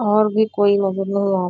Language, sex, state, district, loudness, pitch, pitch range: Hindi, female, Bihar, Bhagalpur, -18 LUFS, 200 Hz, 195-210 Hz